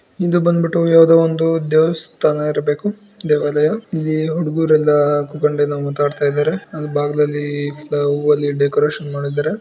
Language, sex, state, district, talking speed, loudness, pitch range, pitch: Kannada, female, Karnataka, Bijapur, 100 wpm, -17 LUFS, 145-165 Hz, 150 Hz